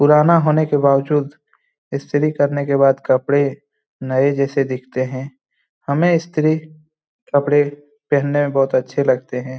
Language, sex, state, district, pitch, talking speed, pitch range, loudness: Hindi, male, Bihar, Lakhisarai, 145 Hz, 140 wpm, 135-150 Hz, -17 LUFS